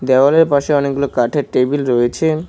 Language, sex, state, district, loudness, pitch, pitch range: Bengali, male, West Bengal, Cooch Behar, -15 LUFS, 140 Hz, 130-150 Hz